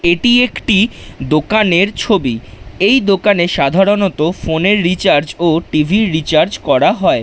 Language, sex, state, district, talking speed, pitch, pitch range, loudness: Bengali, male, West Bengal, Dakshin Dinajpur, 155 wpm, 175 Hz, 155-205 Hz, -13 LUFS